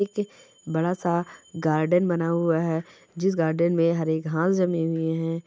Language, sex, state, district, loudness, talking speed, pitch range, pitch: Hindi, male, Chhattisgarh, Bastar, -24 LUFS, 165 wpm, 160-175 Hz, 170 Hz